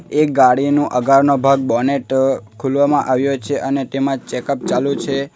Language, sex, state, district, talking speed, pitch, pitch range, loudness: Gujarati, male, Gujarat, Valsad, 155 wpm, 135 Hz, 130-140 Hz, -16 LUFS